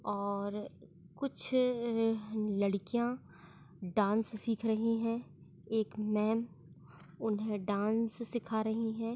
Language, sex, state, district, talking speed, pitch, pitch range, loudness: Hindi, female, Chhattisgarh, Balrampur, 90 wpm, 220 Hz, 200-230 Hz, -34 LUFS